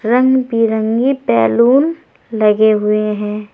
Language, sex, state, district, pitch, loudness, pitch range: Hindi, female, Uttar Pradesh, Saharanpur, 220 Hz, -14 LUFS, 210-250 Hz